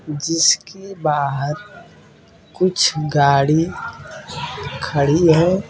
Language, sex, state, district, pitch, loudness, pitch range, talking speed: Hindi, male, Uttar Pradesh, Ghazipur, 155 Hz, -17 LUFS, 145-170 Hz, 65 wpm